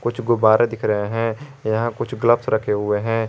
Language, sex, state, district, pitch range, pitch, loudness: Hindi, male, Jharkhand, Garhwa, 110-120 Hz, 115 Hz, -20 LUFS